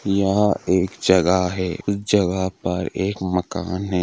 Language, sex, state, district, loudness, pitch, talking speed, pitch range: Hindi, male, Andhra Pradesh, Guntur, -21 LUFS, 95 Hz, 75 wpm, 90-100 Hz